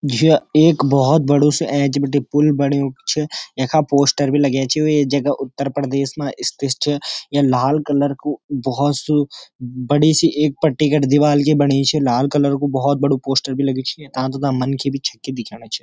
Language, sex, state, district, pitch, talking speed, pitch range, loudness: Garhwali, male, Uttarakhand, Uttarkashi, 140 Hz, 195 wpm, 135-150 Hz, -17 LUFS